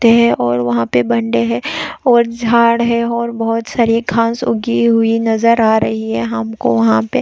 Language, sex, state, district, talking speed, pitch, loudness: Hindi, female, Chhattisgarh, Raigarh, 190 wpm, 225 Hz, -14 LUFS